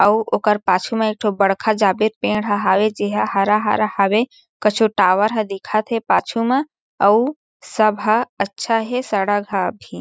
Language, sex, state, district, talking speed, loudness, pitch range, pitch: Chhattisgarhi, female, Chhattisgarh, Jashpur, 185 wpm, -18 LUFS, 200-225 Hz, 210 Hz